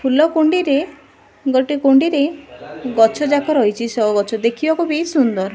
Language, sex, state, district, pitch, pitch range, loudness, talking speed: Odia, female, Odisha, Malkangiri, 280 Hz, 235-310 Hz, -16 LUFS, 120 wpm